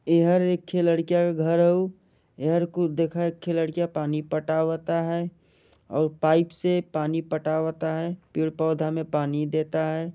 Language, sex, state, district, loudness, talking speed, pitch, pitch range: Bhojpuri, male, Jharkhand, Sahebganj, -25 LUFS, 155 wpm, 165 Hz, 155-175 Hz